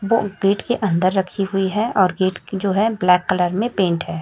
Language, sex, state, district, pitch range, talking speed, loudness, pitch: Hindi, female, Chhattisgarh, Raipur, 185-205 Hz, 240 wpm, -19 LUFS, 195 Hz